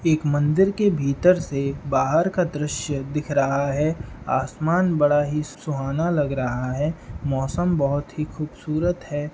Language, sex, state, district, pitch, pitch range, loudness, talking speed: Hindi, male, Uttar Pradesh, Etah, 150 Hz, 140-165 Hz, -23 LUFS, 150 wpm